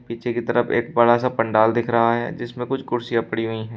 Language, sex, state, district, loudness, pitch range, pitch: Hindi, male, Uttar Pradesh, Shamli, -21 LUFS, 115-120 Hz, 120 Hz